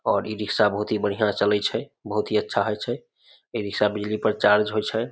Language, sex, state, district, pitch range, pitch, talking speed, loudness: Maithili, male, Bihar, Samastipur, 105-110 Hz, 105 Hz, 200 wpm, -24 LUFS